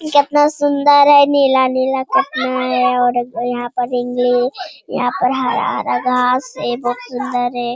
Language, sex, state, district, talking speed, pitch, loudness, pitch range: Hindi, female, Bihar, Jamui, 125 wpm, 255 Hz, -15 LUFS, 245-285 Hz